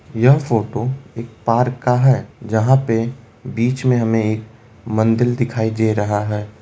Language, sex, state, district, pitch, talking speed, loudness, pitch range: Hindi, male, Uttar Pradesh, Ghazipur, 115 Hz, 155 wpm, -18 LUFS, 110-125 Hz